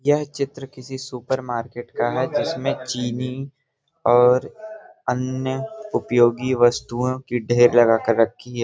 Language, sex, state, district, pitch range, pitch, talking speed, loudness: Hindi, male, Bihar, Gopalganj, 120-130 Hz, 125 Hz, 130 wpm, -21 LUFS